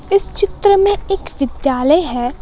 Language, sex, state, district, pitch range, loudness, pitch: Hindi, female, Jharkhand, Palamu, 275-395 Hz, -15 LUFS, 365 Hz